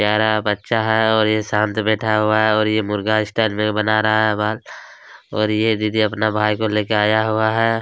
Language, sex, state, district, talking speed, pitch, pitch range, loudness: Hindi, male, Chhattisgarh, Kabirdham, 215 wpm, 110 Hz, 105-110 Hz, -18 LUFS